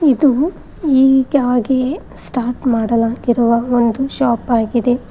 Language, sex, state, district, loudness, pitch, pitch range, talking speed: Kannada, female, Karnataka, Koppal, -15 LUFS, 250 Hz, 235-270 Hz, 80 wpm